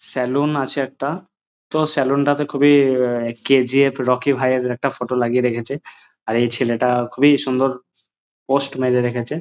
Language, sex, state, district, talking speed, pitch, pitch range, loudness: Bengali, male, West Bengal, Dakshin Dinajpur, 160 wpm, 130 Hz, 125-140 Hz, -19 LUFS